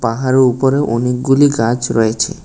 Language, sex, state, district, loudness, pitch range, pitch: Bengali, male, Tripura, West Tripura, -14 LUFS, 115-135 Hz, 125 Hz